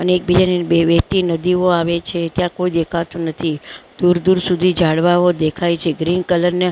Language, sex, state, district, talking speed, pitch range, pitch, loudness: Gujarati, female, Maharashtra, Mumbai Suburban, 190 wpm, 170-180 Hz, 175 Hz, -16 LUFS